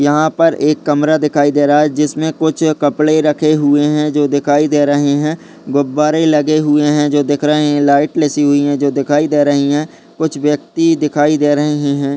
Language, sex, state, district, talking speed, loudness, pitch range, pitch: Hindi, male, Uttar Pradesh, Deoria, 205 wpm, -13 LUFS, 145-155 Hz, 150 Hz